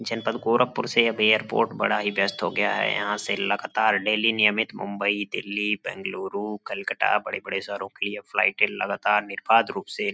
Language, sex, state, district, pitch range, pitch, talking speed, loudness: Hindi, male, Uttar Pradesh, Gorakhpur, 105-115 Hz, 105 Hz, 175 wpm, -24 LUFS